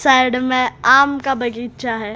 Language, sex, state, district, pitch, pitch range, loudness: Hindi, female, Haryana, Rohtak, 255 Hz, 240-270 Hz, -16 LUFS